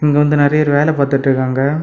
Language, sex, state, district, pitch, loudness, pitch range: Tamil, male, Tamil Nadu, Kanyakumari, 145 Hz, -14 LUFS, 140-150 Hz